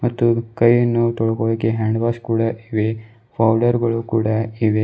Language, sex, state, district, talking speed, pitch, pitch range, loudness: Kannada, male, Karnataka, Bidar, 135 wpm, 115 Hz, 110-115 Hz, -19 LUFS